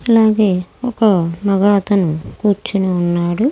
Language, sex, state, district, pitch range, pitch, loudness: Telugu, female, Andhra Pradesh, Krishna, 180-220 Hz, 200 Hz, -15 LUFS